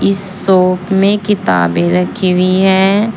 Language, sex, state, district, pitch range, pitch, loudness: Hindi, female, Uttar Pradesh, Saharanpur, 180-195 Hz, 190 Hz, -12 LUFS